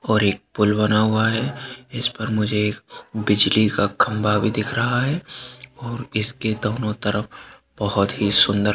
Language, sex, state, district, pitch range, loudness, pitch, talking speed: Hindi, male, Uttarakhand, Uttarkashi, 105-120 Hz, -20 LUFS, 110 Hz, 165 wpm